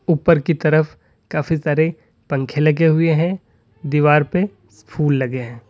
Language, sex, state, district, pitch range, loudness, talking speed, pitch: Hindi, male, Uttar Pradesh, Lalitpur, 135-160 Hz, -18 LUFS, 150 wpm, 150 Hz